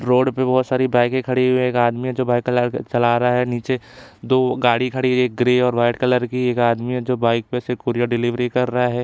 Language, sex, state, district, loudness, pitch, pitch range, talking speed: Hindi, male, Chhattisgarh, Bilaspur, -19 LUFS, 125 Hz, 120-125 Hz, 245 wpm